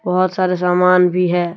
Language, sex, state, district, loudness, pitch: Hindi, male, Jharkhand, Deoghar, -15 LUFS, 180 Hz